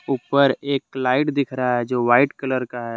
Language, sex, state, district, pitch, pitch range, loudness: Hindi, male, Jharkhand, Deoghar, 130 Hz, 125-140 Hz, -20 LUFS